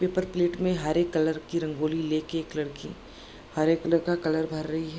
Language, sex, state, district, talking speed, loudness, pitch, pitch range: Hindi, female, Bihar, Darbhanga, 205 wpm, -28 LUFS, 160 Hz, 155-170 Hz